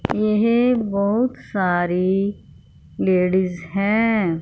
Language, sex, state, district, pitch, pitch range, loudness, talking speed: Hindi, female, Punjab, Fazilka, 200 Hz, 180-220 Hz, -20 LUFS, 70 wpm